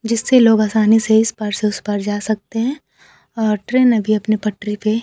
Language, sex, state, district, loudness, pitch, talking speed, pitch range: Hindi, female, Bihar, Kaimur, -16 LUFS, 220 Hz, 215 wpm, 210-225 Hz